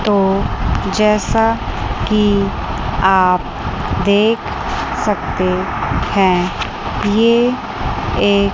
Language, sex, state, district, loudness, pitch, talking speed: Hindi, female, Chandigarh, Chandigarh, -16 LUFS, 190 Hz, 65 wpm